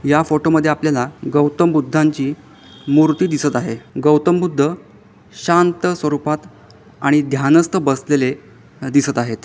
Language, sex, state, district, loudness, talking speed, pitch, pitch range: Marathi, male, Maharashtra, Pune, -16 LUFS, 100 wpm, 150 Hz, 140-155 Hz